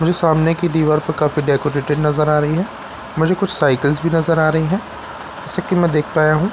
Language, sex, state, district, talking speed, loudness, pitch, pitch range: Hindi, male, Bihar, Katihar, 240 wpm, -17 LUFS, 155 Hz, 150-170 Hz